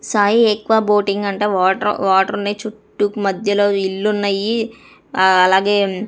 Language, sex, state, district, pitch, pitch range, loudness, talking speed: Telugu, female, Andhra Pradesh, Sri Satya Sai, 205 Hz, 195-210 Hz, -16 LUFS, 130 wpm